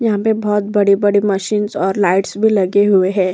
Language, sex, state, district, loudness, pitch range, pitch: Hindi, female, Uttar Pradesh, Hamirpur, -15 LUFS, 195-210 Hz, 205 Hz